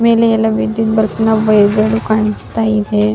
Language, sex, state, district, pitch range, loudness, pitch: Kannada, female, Karnataka, Raichur, 215-225 Hz, -13 LUFS, 220 Hz